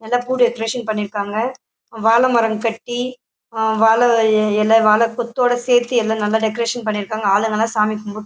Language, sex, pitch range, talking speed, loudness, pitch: Tamil, female, 215-240 Hz, 140 wpm, -17 LUFS, 225 Hz